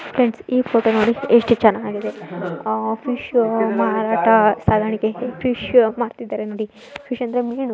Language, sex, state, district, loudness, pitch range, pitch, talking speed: Kannada, female, Karnataka, Bijapur, -19 LUFS, 220-245 Hz, 225 Hz, 115 wpm